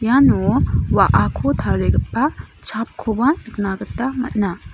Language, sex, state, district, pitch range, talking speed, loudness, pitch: Garo, female, Meghalaya, South Garo Hills, 205-260 Hz, 90 wpm, -19 LUFS, 230 Hz